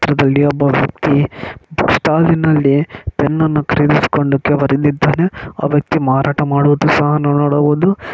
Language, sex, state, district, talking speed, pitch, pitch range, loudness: Kannada, male, Karnataka, Mysore, 110 wpm, 145 Hz, 145-150 Hz, -14 LUFS